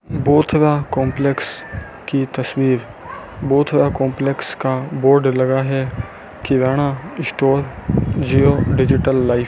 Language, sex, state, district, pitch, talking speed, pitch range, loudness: Hindi, male, Rajasthan, Bikaner, 135 Hz, 100 wpm, 130-140 Hz, -17 LUFS